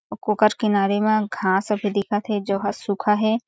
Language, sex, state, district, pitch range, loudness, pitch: Chhattisgarhi, female, Chhattisgarh, Jashpur, 200-215 Hz, -21 LUFS, 210 Hz